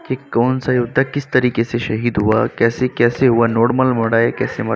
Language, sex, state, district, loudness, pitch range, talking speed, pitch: Hindi, male, Uttar Pradesh, Gorakhpur, -16 LUFS, 115-130 Hz, 215 wpm, 120 Hz